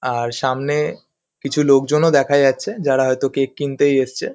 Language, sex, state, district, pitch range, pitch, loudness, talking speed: Bengali, male, West Bengal, Kolkata, 135-150 Hz, 140 Hz, -17 LUFS, 165 wpm